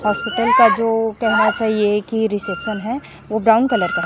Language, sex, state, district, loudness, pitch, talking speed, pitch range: Hindi, female, Chhattisgarh, Raipur, -17 LUFS, 225 Hz, 180 wpm, 210-235 Hz